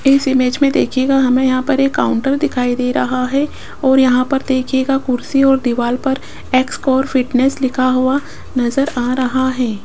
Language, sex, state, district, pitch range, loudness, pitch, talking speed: Hindi, female, Rajasthan, Jaipur, 255-270 Hz, -15 LUFS, 260 Hz, 185 wpm